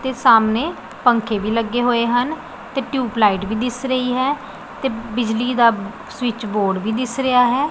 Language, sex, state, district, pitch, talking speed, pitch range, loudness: Punjabi, female, Punjab, Pathankot, 245 Hz, 170 wpm, 225-255 Hz, -19 LUFS